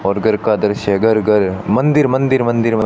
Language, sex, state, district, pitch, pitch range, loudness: Hindi, male, Rajasthan, Bikaner, 110 Hz, 105-120 Hz, -15 LUFS